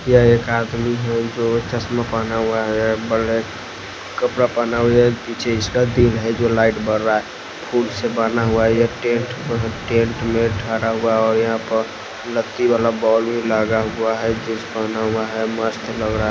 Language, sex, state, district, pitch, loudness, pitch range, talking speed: Hindi, male, Himachal Pradesh, Shimla, 115 Hz, -19 LUFS, 110-120 Hz, 185 wpm